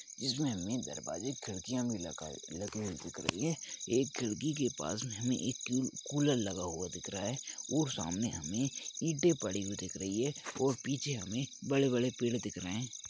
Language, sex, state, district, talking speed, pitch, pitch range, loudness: Hindi, male, Rajasthan, Churu, 185 wpm, 120 Hz, 100-135 Hz, -36 LUFS